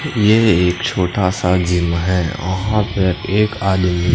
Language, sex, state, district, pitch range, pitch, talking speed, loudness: Hindi, male, Odisha, Khordha, 90-105 Hz, 95 Hz, 145 wpm, -16 LUFS